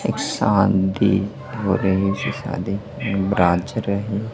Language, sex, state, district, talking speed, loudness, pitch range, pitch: Hindi, male, Madhya Pradesh, Dhar, 95 wpm, -21 LUFS, 95-105 Hz, 100 Hz